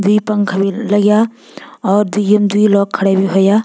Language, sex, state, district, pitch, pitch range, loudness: Garhwali, female, Uttarakhand, Tehri Garhwal, 205 Hz, 195-210 Hz, -13 LUFS